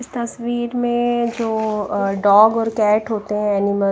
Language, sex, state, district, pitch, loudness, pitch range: Hindi, female, Odisha, Nuapada, 220 Hz, -18 LUFS, 210-240 Hz